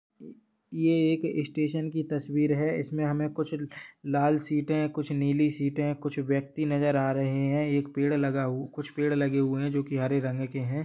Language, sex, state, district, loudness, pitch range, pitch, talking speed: Hindi, male, Jharkhand, Sahebganj, -28 LUFS, 140-150 Hz, 145 Hz, 190 wpm